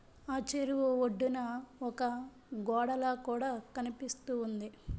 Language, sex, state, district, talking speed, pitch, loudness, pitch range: Telugu, female, Andhra Pradesh, Chittoor, 95 wpm, 250 Hz, -36 LUFS, 240-260 Hz